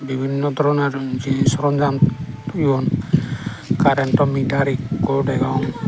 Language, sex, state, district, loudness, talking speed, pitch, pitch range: Chakma, male, Tripura, Dhalai, -19 LUFS, 90 wpm, 135 Hz, 135-145 Hz